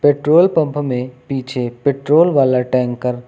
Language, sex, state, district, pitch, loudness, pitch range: Hindi, male, Uttar Pradesh, Lucknow, 135 Hz, -16 LUFS, 125-145 Hz